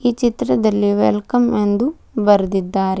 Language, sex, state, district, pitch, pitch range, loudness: Kannada, female, Karnataka, Bidar, 210 Hz, 195-240 Hz, -17 LUFS